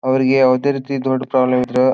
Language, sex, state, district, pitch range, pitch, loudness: Kannada, male, Karnataka, Bijapur, 130-135 Hz, 130 Hz, -16 LUFS